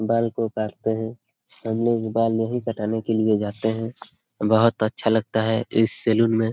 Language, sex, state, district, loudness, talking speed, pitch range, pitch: Hindi, male, Jharkhand, Sahebganj, -23 LUFS, 185 wpm, 110-115 Hz, 110 Hz